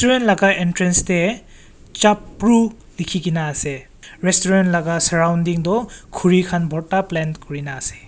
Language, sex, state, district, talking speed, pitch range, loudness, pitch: Nagamese, male, Nagaland, Kohima, 120 wpm, 165-195 Hz, -18 LUFS, 175 Hz